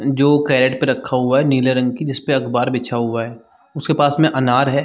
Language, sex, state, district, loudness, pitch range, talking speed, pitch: Hindi, male, Chhattisgarh, Sarguja, -17 LUFS, 125-140 Hz, 250 wpm, 130 Hz